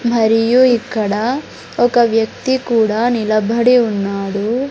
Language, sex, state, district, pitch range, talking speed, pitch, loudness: Telugu, male, Andhra Pradesh, Sri Satya Sai, 215-245 Hz, 90 wpm, 230 Hz, -15 LUFS